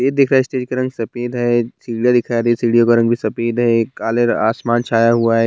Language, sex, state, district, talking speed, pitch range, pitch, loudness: Hindi, male, Bihar, Bhagalpur, 250 wpm, 115-120 Hz, 120 Hz, -16 LUFS